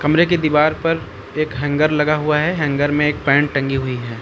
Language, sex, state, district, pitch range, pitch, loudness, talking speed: Hindi, male, Uttar Pradesh, Lucknow, 135-155 Hz, 150 Hz, -17 LUFS, 225 wpm